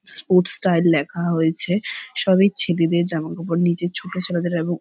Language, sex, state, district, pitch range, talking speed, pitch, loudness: Bengali, female, West Bengal, Purulia, 170-185 Hz, 150 wpm, 175 Hz, -19 LUFS